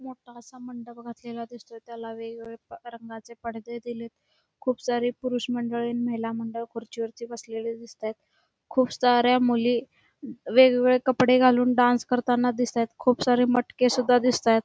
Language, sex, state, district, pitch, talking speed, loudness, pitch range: Marathi, female, Karnataka, Belgaum, 240 Hz, 140 wpm, -24 LUFS, 230-250 Hz